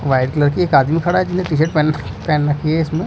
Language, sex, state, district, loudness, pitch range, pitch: Hindi, male, Delhi, New Delhi, -16 LUFS, 145-165 Hz, 155 Hz